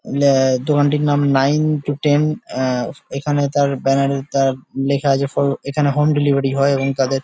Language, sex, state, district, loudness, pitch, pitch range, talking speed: Bengali, male, West Bengal, Jalpaiguri, -17 LUFS, 140 Hz, 135-145 Hz, 175 wpm